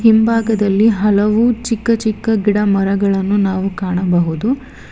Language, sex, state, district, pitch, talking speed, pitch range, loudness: Kannada, female, Karnataka, Bangalore, 210 Hz, 85 wpm, 195-225 Hz, -15 LUFS